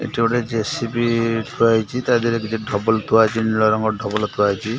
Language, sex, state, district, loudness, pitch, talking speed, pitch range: Odia, male, Odisha, Khordha, -19 LUFS, 115 Hz, 200 wpm, 110-115 Hz